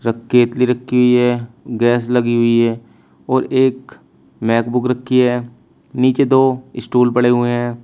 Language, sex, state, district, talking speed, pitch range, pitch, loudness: Hindi, male, Uttar Pradesh, Shamli, 155 wpm, 120-125 Hz, 120 Hz, -15 LUFS